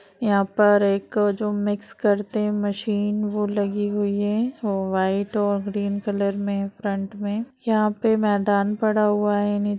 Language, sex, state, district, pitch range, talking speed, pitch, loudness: Hindi, female, Bihar, Madhepura, 200-210 Hz, 165 wpm, 205 Hz, -23 LUFS